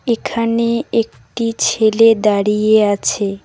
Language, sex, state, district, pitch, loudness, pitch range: Bengali, female, West Bengal, Cooch Behar, 220 Hz, -15 LUFS, 205-230 Hz